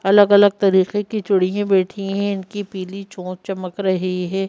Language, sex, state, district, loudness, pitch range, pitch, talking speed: Hindi, female, Madhya Pradesh, Bhopal, -19 LUFS, 185-205 Hz, 195 Hz, 175 wpm